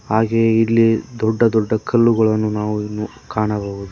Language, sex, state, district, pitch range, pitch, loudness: Kannada, male, Karnataka, Koppal, 105-115 Hz, 110 Hz, -17 LUFS